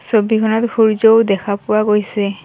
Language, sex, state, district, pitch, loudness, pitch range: Assamese, female, Assam, Kamrup Metropolitan, 215 Hz, -14 LUFS, 205-220 Hz